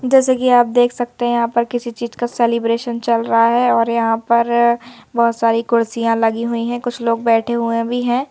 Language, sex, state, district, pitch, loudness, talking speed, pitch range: Hindi, female, Madhya Pradesh, Bhopal, 235 Hz, -16 LUFS, 215 wpm, 230-240 Hz